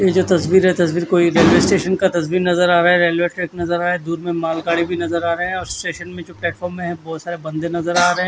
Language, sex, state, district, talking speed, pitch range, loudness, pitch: Hindi, male, Odisha, Khordha, 290 wpm, 170-180 Hz, -17 LUFS, 175 Hz